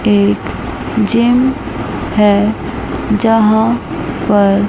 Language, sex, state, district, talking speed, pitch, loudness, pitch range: Hindi, female, Chandigarh, Chandigarh, 65 wpm, 210 Hz, -14 LUFS, 195-225 Hz